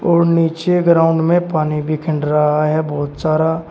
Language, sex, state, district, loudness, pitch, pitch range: Hindi, male, Uttar Pradesh, Shamli, -16 LUFS, 160 Hz, 150-165 Hz